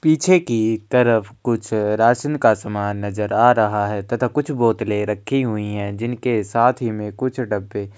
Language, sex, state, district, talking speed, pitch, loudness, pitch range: Hindi, male, Chhattisgarh, Kabirdham, 180 wpm, 110 Hz, -19 LUFS, 105-125 Hz